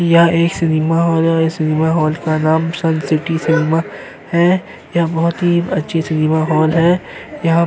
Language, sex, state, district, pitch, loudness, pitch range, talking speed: Hindi, male, Uttar Pradesh, Jyotiba Phule Nagar, 165 Hz, -15 LUFS, 155-170 Hz, 170 wpm